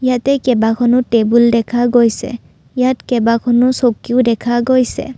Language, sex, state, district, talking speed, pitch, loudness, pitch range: Assamese, female, Assam, Kamrup Metropolitan, 115 wpm, 240 Hz, -14 LUFS, 235-250 Hz